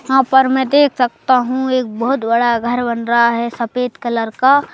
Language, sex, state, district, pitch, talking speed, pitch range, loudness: Hindi, male, Madhya Pradesh, Bhopal, 250 Hz, 205 wpm, 235-265 Hz, -15 LUFS